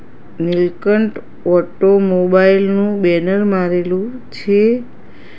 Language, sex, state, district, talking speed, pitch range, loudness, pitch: Gujarati, female, Gujarat, Gandhinagar, 65 wpm, 175-205 Hz, -15 LUFS, 195 Hz